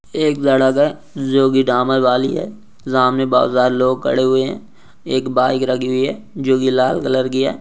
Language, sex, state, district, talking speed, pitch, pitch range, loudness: Hindi, male, Rajasthan, Nagaur, 190 wpm, 130 Hz, 130-135 Hz, -16 LUFS